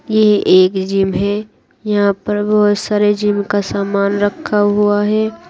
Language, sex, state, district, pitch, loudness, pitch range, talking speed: Hindi, female, Uttar Pradesh, Saharanpur, 205 Hz, -14 LUFS, 200-210 Hz, 155 wpm